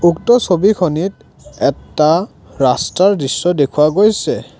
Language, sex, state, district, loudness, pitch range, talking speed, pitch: Assamese, male, Assam, Kamrup Metropolitan, -14 LUFS, 145-200 Hz, 90 wpm, 175 Hz